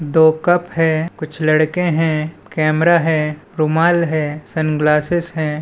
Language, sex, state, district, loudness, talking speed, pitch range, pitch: Hindi, female, Chhattisgarh, Balrampur, -16 LUFS, 130 wpm, 155-170 Hz, 160 Hz